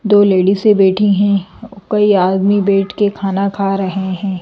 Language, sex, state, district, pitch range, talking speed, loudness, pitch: Hindi, female, Madhya Pradesh, Bhopal, 195-205 Hz, 175 wpm, -14 LUFS, 195 Hz